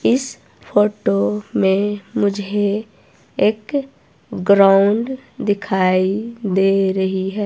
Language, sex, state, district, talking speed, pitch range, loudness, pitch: Hindi, female, Himachal Pradesh, Shimla, 80 wpm, 190-210 Hz, -18 LUFS, 200 Hz